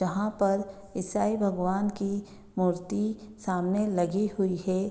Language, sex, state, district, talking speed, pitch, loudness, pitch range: Hindi, female, Bihar, Gopalganj, 120 wpm, 200 Hz, -29 LUFS, 185-205 Hz